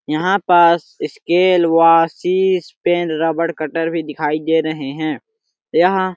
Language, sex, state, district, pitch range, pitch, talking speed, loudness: Hindi, male, Chhattisgarh, Sarguja, 160-180 Hz, 165 Hz, 145 wpm, -16 LUFS